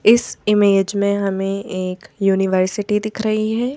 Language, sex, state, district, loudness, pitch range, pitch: Hindi, female, Madhya Pradesh, Bhopal, -18 LUFS, 195-215 Hz, 200 Hz